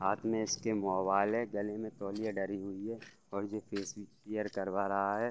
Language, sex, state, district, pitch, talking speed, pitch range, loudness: Hindi, male, Bihar, Gopalganj, 100 Hz, 215 wpm, 100-110 Hz, -36 LUFS